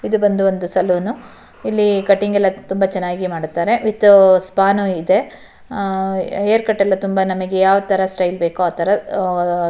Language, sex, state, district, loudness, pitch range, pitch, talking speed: Kannada, female, Karnataka, Shimoga, -16 LUFS, 185-200 Hz, 190 Hz, 140 wpm